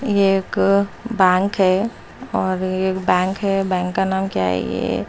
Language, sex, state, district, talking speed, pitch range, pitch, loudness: Hindi, female, Maharashtra, Mumbai Suburban, 155 wpm, 185-195 Hz, 190 Hz, -19 LUFS